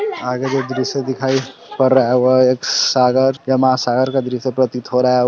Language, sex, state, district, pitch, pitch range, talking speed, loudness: Hindi, male, Bihar, Sitamarhi, 130 Hz, 125-130 Hz, 205 wpm, -16 LUFS